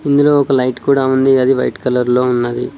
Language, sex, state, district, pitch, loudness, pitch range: Telugu, male, Telangana, Mahabubabad, 130 Hz, -13 LUFS, 125-135 Hz